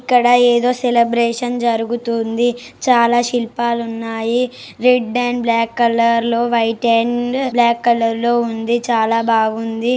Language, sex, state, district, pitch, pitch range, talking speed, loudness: Telugu, male, Andhra Pradesh, Srikakulam, 235 Hz, 230-245 Hz, 120 wpm, -16 LUFS